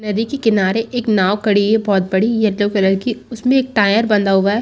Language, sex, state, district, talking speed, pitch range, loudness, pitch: Hindi, female, Chhattisgarh, Rajnandgaon, 235 wpm, 200-225 Hz, -16 LUFS, 215 Hz